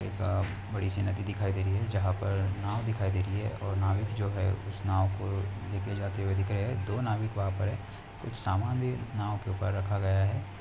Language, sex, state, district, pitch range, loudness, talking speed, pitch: Hindi, male, Uttar Pradesh, Hamirpur, 95-105 Hz, -32 LUFS, 250 wpm, 100 Hz